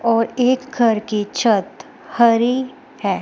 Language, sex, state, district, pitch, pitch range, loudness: Hindi, female, Himachal Pradesh, Shimla, 235 Hz, 225-255 Hz, -18 LUFS